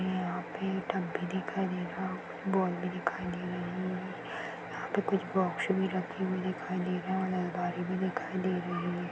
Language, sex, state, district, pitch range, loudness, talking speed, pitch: Hindi, female, Chhattisgarh, Sukma, 180-190 Hz, -34 LUFS, 195 wpm, 185 Hz